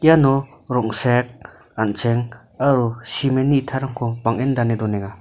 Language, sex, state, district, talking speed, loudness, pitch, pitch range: Garo, male, Meghalaya, North Garo Hills, 105 wpm, -20 LUFS, 120 Hz, 115-135 Hz